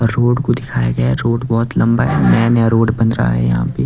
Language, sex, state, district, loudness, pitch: Hindi, male, Delhi, New Delhi, -15 LUFS, 115 Hz